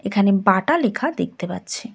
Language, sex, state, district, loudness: Bengali, female, West Bengal, Cooch Behar, -20 LUFS